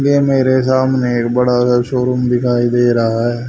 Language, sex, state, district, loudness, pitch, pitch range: Hindi, male, Haryana, Charkhi Dadri, -14 LUFS, 125 Hz, 120-130 Hz